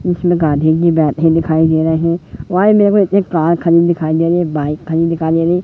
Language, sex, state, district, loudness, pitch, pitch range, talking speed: Hindi, male, Madhya Pradesh, Katni, -13 LUFS, 165 Hz, 160-175 Hz, 190 wpm